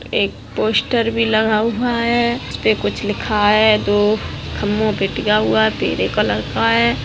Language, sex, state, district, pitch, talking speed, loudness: Hindi, female, Bihar, Darbhanga, 210 Hz, 170 wpm, -17 LUFS